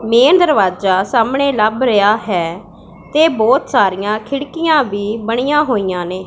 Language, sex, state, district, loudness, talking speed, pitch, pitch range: Punjabi, female, Punjab, Pathankot, -14 LUFS, 135 wpm, 220 Hz, 195-275 Hz